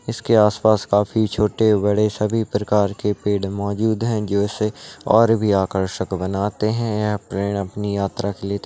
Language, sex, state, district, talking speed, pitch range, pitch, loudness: Hindi, male, Bihar, Darbhanga, 160 wpm, 100-110 Hz, 105 Hz, -20 LUFS